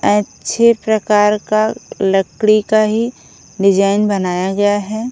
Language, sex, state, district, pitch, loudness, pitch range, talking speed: Hindi, female, Odisha, Khordha, 210 Hz, -15 LUFS, 195-215 Hz, 115 wpm